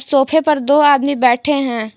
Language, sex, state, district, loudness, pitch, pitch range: Hindi, female, Jharkhand, Garhwa, -14 LUFS, 280 Hz, 255-295 Hz